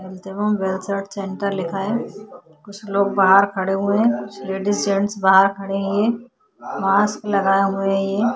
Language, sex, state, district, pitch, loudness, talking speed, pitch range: Hindi, female, Uttar Pradesh, Hamirpur, 200 Hz, -19 LUFS, 170 wpm, 195-205 Hz